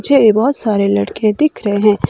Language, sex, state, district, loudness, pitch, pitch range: Hindi, female, Himachal Pradesh, Shimla, -14 LUFS, 215 Hz, 200-245 Hz